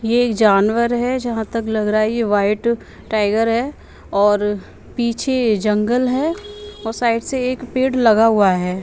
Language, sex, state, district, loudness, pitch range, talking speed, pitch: Hindi, female, Bihar, Patna, -17 LUFS, 210-250 Hz, 165 wpm, 230 Hz